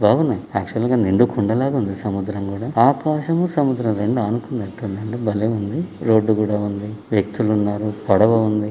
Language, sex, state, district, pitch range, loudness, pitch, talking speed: Telugu, male, Telangana, Karimnagar, 105-120 Hz, -20 LUFS, 110 Hz, 170 wpm